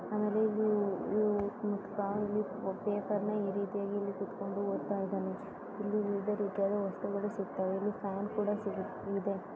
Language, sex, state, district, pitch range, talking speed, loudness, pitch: Kannada, female, Karnataka, Bellary, 195-210 Hz, 190 wpm, -35 LUFS, 200 Hz